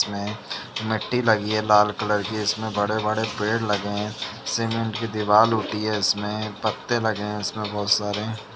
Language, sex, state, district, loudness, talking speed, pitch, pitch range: Hindi, male, Uttar Pradesh, Jalaun, -23 LUFS, 170 wpm, 105 Hz, 105-110 Hz